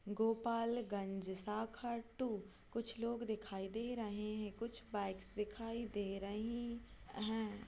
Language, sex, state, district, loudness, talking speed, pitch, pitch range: Hindi, female, Chhattisgarh, Kabirdham, -43 LUFS, 115 wpm, 220 Hz, 205-230 Hz